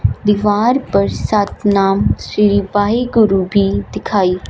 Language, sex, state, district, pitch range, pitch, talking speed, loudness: Hindi, female, Punjab, Fazilka, 185-210 Hz, 200 Hz, 95 wpm, -15 LUFS